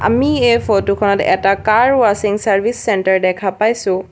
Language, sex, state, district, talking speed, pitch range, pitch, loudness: Assamese, female, Assam, Sonitpur, 160 wpm, 195-230 Hz, 205 Hz, -14 LUFS